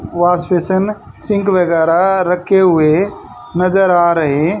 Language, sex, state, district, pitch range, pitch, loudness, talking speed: Hindi, male, Haryana, Charkhi Dadri, 170-195 Hz, 180 Hz, -13 LUFS, 115 wpm